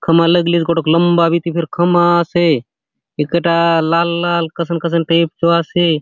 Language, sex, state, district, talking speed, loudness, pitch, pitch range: Halbi, male, Chhattisgarh, Bastar, 190 wpm, -14 LUFS, 170 Hz, 165-170 Hz